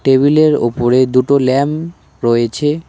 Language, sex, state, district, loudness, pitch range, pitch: Bengali, male, West Bengal, Cooch Behar, -13 LUFS, 125-150 Hz, 135 Hz